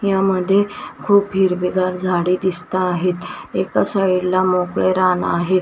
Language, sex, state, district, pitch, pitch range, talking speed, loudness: Marathi, female, Maharashtra, Washim, 185 Hz, 180-190 Hz, 115 wpm, -18 LUFS